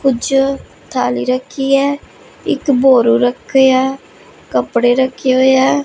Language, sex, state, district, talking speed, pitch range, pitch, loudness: Punjabi, female, Punjab, Pathankot, 135 wpm, 255-275 Hz, 265 Hz, -14 LUFS